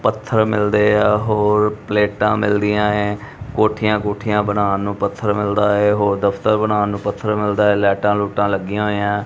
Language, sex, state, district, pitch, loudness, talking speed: Punjabi, male, Punjab, Kapurthala, 105 Hz, -17 LUFS, 160 wpm